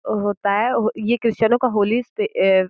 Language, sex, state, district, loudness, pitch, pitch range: Hindi, female, Uttar Pradesh, Gorakhpur, -19 LUFS, 225 Hz, 205-240 Hz